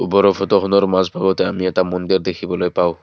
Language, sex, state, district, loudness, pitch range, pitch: Assamese, male, Assam, Kamrup Metropolitan, -17 LUFS, 90-100 Hz, 95 Hz